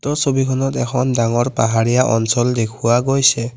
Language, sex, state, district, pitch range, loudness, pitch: Assamese, male, Assam, Kamrup Metropolitan, 115-135 Hz, -16 LUFS, 120 Hz